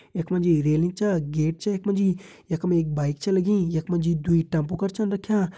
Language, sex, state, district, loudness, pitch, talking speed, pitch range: Hindi, male, Uttarakhand, Tehri Garhwal, -24 LUFS, 175 Hz, 215 wpm, 160-195 Hz